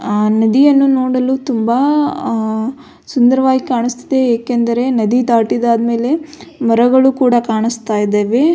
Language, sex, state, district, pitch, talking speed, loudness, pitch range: Kannada, female, Karnataka, Belgaum, 245 Hz, 100 wpm, -14 LUFS, 230-265 Hz